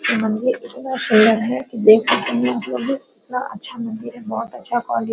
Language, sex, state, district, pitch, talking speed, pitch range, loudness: Hindi, female, Bihar, Araria, 230 Hz, 235 wpm, 220-255 Hz, -18 LUFS